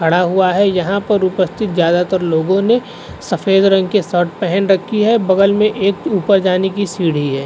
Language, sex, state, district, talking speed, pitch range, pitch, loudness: Hindi, male, Uttar Pradesh, Varanasi, 195 wpm, 180-200 Hz, 190 Hz, -14 LUFS